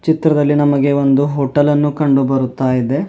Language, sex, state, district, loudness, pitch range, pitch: Kannada, male, Karnataka, Bidar, -14 LUFS, 135-145 Hz, 140 Hz